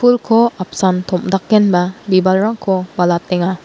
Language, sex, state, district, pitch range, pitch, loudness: Garo, female, Meghalaya, West Garo Hills, 180-215 Hz, 185 Hz, -15 LUFS